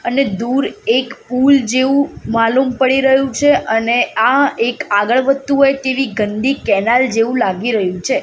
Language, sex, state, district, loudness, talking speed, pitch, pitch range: Gujarati, female, Gujarat, Gandhinagar, -14 LUFS, 160 wpm, 255 Hz, 230-270 Hz